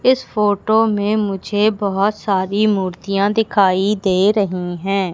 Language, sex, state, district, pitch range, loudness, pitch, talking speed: Hindi, female, Madhya Pradesh, Katni, 195-215 Hz, -17 LUFS, 200 Hz, 130 wpm